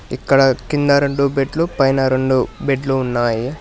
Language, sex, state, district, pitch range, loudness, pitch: Telugu, male, Telangana, Hyderabad, 130-140 Hz, -17 LUFS, 135 Hz